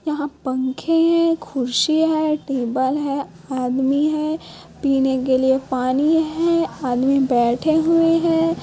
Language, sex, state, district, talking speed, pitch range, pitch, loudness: Hindi, female, Chhattisgarh, Kabirdham, 125 wpm, 260-320 Hz, 285 Hz, -19 LUFS